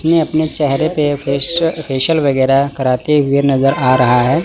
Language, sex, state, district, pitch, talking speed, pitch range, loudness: Hindi, male, Chandigarh, Chandigarh, 140 Hz, 160 wpm, 135-155 Hz, -14 LUFS